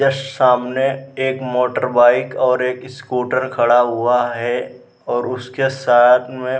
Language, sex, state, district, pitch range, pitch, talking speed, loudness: Hindi, male, Bihar, Vaishali, 120-130 Hz, 125 Hz, 145 wpm, -17 LUFS